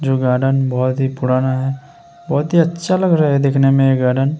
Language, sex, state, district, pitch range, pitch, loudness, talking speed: Hindi, male, Uttar Pradesh, Hamirpur, 130-155 Hz, 135 Hz, -16 LUFS, 230 wpm